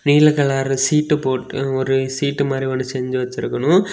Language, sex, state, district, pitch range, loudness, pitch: Tamil, male, Tamil Nadu, Kanyakumari, 130-145 Hz, -19 LUFS, 135 Hz